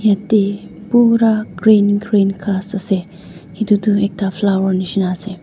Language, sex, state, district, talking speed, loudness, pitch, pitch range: Nagamese, female, Nagaland, Dimapur, 130 wpm, -16 LUFS, 200 Hz, 190-215 Hz